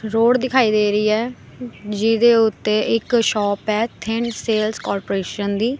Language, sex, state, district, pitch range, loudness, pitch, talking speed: Punjabi, female, Punjab, Kapurthala, 210-235 Hz, -19 LUFS, 220 Hz, 145 wpm